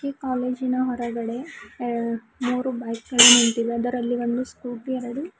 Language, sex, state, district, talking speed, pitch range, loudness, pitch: Kannada, female, Karnataka, Bidar, 120 wpm, 235-255 Hz, -21 LUFS, 245 Hz